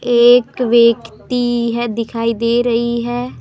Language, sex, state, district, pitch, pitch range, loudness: Hindi, female, Jharkhand, Palamu, 235 Hz, 235-245 Hz, -15 LUFS